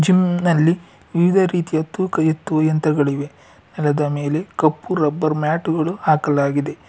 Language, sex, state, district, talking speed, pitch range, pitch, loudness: Kannada, male, Karnataka, Bangalore, 120 wpm, 150-175 Hz, 155 Hz, -19 LUFS